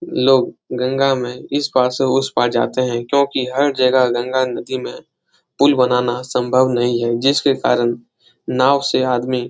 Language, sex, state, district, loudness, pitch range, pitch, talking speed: Hindi, male, Bihar, Jahanabad, -17 LUFS, 125-135 Hz, 130 Hz, 170 wpm